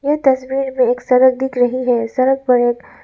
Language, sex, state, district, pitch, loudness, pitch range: Hindi, female, Arunachal Pradesh, Lower Dibang Valley, 255 Hz, -15 LUFS, 245-265 Hz